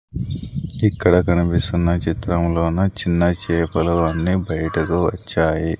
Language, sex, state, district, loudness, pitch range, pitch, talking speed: Telugu, male, Andhra Pradesh, Sri Satya Sai, -19 LUFS, 80-90 Hz, 85 Hz, 85 wpm